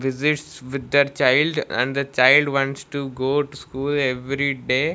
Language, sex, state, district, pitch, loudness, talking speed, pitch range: English, male, Odisha, Malkangiri, 140 Hz, -20 LUFS, 170 wpm, 130-140 Hz